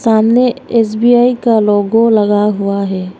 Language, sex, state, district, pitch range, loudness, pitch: Hindi, female, Arunachal Pradesh, Longding, 205-235 Hz, -11 LUFS, 220 Hz